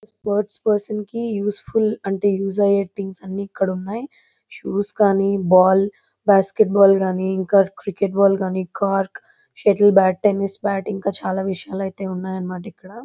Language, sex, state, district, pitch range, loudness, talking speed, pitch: Telugu, female, Andhra Pradesh, Chittoor, 190-205 Hz, -19 LUFS, 145 wpm, 195 Hz